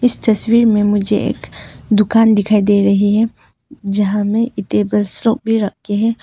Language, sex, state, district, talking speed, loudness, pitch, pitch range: Hindi, female, Arunachal Pradesh, Papum Pare, 135 wpm, -15 LUFS, 210 Hz, 205-225 Hz